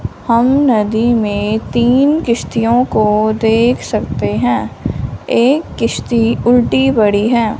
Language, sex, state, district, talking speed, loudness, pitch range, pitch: Hindi, female, Punjab, Fazilka, 110 wpm, -13 LUFS, 220-245 Hz, 230 Hz